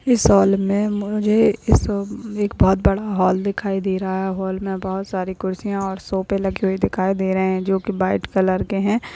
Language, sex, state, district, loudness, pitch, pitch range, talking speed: Hindi, female, Maharashtra, Sindhudurg, -20 LUFS, 195 Hz, 190-205 Hz, 210 wpm